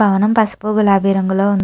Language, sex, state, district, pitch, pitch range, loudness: Telugu, female, Andhra Pradesh, Chittoor, 200 Hz, 195-215 Hz, -15 LUFS